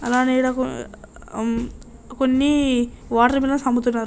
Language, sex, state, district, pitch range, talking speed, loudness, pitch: Telugu, male, Andhra Pradesh, Srikakulam, 240-265 Hz, 90 wpm, -20 LUFS, 255 Hz